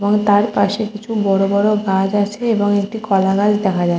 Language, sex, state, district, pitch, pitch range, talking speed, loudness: Bengali, female, West Bengal, Kolkata, 205 Hz, 195-210 Hz, 195 wpm, -16 LUFS